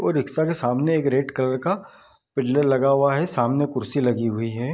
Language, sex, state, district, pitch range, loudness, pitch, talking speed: Hindi, male, Bihar, East Champaran, 125-145 Hz, -22 LUFS, 135 Hz, 215 wpm